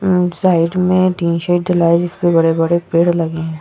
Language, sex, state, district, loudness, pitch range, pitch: Hindi, female, Uttar Pradesh, Etah, -15 LUFS, 170-180 Hz, 170 Hz